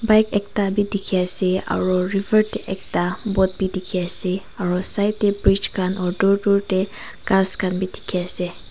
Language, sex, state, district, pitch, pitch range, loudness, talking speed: Nagamese, female, Nagaland, Kohima, 190 Hz, 185-205 Hz, -21 LUFS, 185 wpm